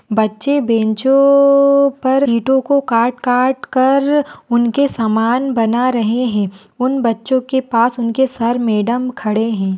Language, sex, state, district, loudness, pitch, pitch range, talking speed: Hindi, female, Uttar Pradesh, Hamirpur, -15 LUFS, 245 Hz, 230-265 Hz, 135 wpm